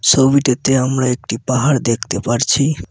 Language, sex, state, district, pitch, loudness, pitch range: Bengali, male, West Bengal, Cooch Behar, 130 Hz, -15 LUFS, 120-135 Hz